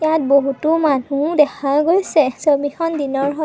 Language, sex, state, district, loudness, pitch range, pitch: Assamese, female, Assam, Kamrup Metropolitan, -17 LUFS, 280-315 Hz, 295 Hz